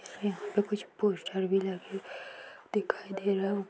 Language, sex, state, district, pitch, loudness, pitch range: Hindi, female, Bihar, Saran, 195 Hz, -32 LUFS, 195-205 Hz